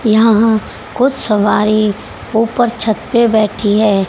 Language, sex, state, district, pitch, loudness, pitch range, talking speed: Hindi, female, Haryana, Jhajjar, 220 Hz, -13 LUFS, 210-230 Hz, 115 wpm